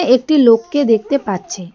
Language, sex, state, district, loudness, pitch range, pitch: Bengali, female, West Bengal, Darjeeling, -14 LUFS, 205-280 Hz, 235 Hz